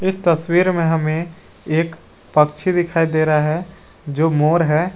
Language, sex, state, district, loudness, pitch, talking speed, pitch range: Hindi, male, Jharkhand, Garhwa, -18 LUFS, 165 Hz, 155 wpm, 155-175 Hz